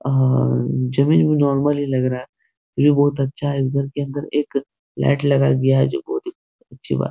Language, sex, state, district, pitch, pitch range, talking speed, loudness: Hindi, male, Bihar, Supaul, 140 Hz, 135-145 Hz, 195 wpm, -19 LUFS